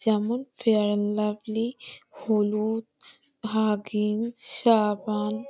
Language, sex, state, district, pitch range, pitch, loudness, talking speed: Bengali, female, West Bengal, Malda, 210-230 Hz, 220 Hz, -26 LUFS, 75 wpm